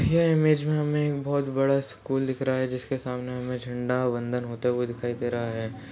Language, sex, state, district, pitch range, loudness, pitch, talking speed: Hindi, male, Uttar Pradesh, Hamirpur, 125-140 Hz, -27 LUFS, 125 Hz, 215 wpm